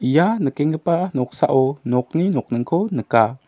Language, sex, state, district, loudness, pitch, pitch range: Garo, male, Meghalaya, South Garo Hills, -20 LUFS, 140 Hz, 125-170 Hz